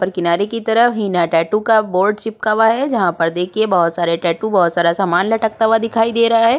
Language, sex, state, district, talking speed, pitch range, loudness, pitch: Hindi, female, Uttarakhand, Tehri Garhwal, 225 wpm, 175-225 Hz, -15 LUFS, 215 Hz